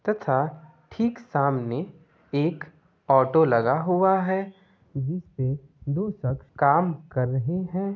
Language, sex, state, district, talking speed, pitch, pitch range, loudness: Hindi, male, Bihar, Gopalganj, 115 wpm, 155 Hz, 140-185 Hz, -25 LUFS